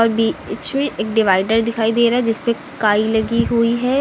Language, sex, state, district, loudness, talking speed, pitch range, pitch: Hindi, female, Uttar Pradesh, Lucknow, -17 LUFS, 165 wpm, 220-235 Hz, 230 Hz